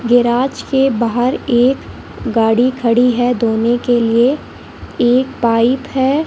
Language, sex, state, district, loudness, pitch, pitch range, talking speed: Hindi, female, Rajasthan, Bikaner, -14 LUFS, 245 Hz, 235-260 Hz, 125 wpm